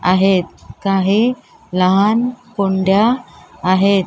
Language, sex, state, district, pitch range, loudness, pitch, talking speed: Marathi, female, Maharashtra, Mumbai Suburban, 190-225 Hz, -16 LUFS, 195 Hz, 75 wpm